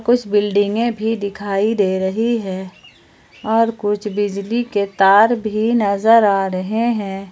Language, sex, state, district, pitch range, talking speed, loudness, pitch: Hindi, female, Jharkhand, Ranchi, 200-225 Hz, 145 wpm, -17 LUFS, 205 Hz